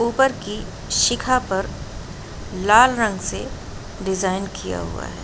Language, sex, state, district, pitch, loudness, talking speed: Hindi, female, Uttar Pradesh, Jalaun, 195 Hz, -20 LUFS, 125 wpm